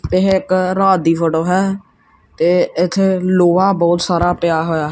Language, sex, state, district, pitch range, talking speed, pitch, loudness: Punjabi, male, Punjab, Kapurthala, 170-190 Hz, 160 wpm, 180 Hz, -15 LUFS